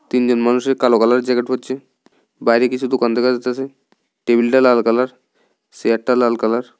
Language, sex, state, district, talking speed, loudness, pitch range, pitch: Bengali, male, Tripura, South Tripura, 160 wpm, -16 LUFS, 120-130 Hz, 125 Hz